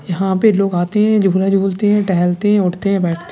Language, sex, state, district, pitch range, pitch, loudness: Hindi, male, Uttar Pradesh, Budaun, 180-205 Hz, 195 Hz, -15 LUFS